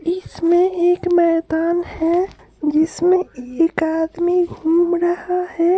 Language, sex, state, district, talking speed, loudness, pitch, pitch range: Hindi, female, Bihar, Supaul, 95 wpm, -18 LUFS, 345 Hz, 330-355 Hz